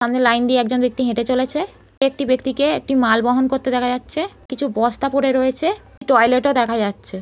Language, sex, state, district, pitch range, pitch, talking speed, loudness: Bengali, female, West Bengal, Malda, 245-275 Hz, 255 Hz, 190 wpm, -18 LUFS